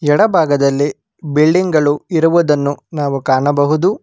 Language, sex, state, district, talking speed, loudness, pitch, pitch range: Kannada, male, Karnataka, Bangalore, 105 wpm, -14 LUFS, 150 Hz, 145-165 Hz